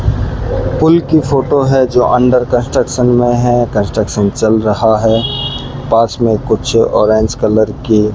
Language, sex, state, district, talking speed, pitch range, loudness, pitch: Hindi, male, Rajasthan, Bikaner, 145 wpm, 110-130 Hz, -12 LUFS, 120 Hz